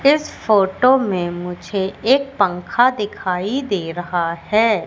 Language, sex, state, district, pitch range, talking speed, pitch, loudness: Hindi, female, Madhya Pradesh, Katni, 180-245 Hz, 125 wpm, 200 Hz, -18 LUFS